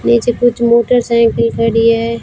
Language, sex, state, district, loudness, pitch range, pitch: Hindi, female, Rajasthan, Bikaner, -12 LUFS, 230-235 Hz, 230 Hz